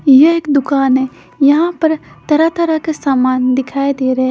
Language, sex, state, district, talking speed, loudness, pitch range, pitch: Hindi, female, Haryana, Charkhi Dadri, 180 wpm, -13 LUFS, 265-315 Hz, 280 Hz